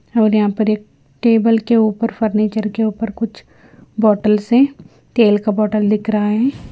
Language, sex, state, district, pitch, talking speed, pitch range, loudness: Hindi, female, Himachal Pradesh, Shimla, 215 Hz, 170 wpm, 210-225 Hz, -16 LUFS